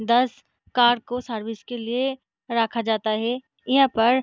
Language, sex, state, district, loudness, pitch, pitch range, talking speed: Hindi, female, Bihar, Darbhanga, -23 LUFS, 240 Hz, 225-250 Hz, 155 wpm